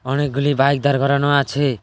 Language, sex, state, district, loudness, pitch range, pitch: Bengali, male, West Bengal, Cooch Behar, -17 LUFS, 135-140 Hz, 140 Hz